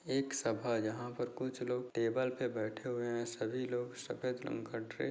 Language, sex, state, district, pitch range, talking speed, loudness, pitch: Hindi, male, Bihar, Jahanabad, 115-125 Hz, 210 wpm, -38 LUFS, 120 Hz